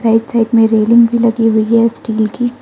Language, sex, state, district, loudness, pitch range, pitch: Hindi, female, Arunachal Pradesh, Lower Dibang Valley, -12 LUFS, 225-235 Hz, 230 Hz